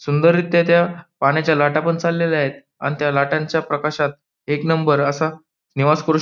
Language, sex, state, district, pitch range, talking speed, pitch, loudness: Marathi, male, Maharashtra, Pune, 145-160 Hz, 165 wpm, 155 Hz, -18 LUFS